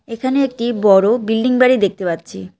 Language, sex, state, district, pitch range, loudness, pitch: Bengali, female, West Bengal, Cooch Behar, 195-250 Hz, -15 LUFS, 225 Hz